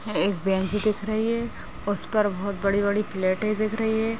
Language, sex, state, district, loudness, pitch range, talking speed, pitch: Hindi, female, Uttar Pradesh, Gorakhpur, -25 LUFS, 200-215 Hz, 185 wpm, 210 Hz